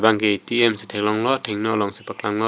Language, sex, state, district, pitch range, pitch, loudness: Karbi, male, Assam, Karbi Anglong, 105-110 Hz, 110 Hz, -21 LUFS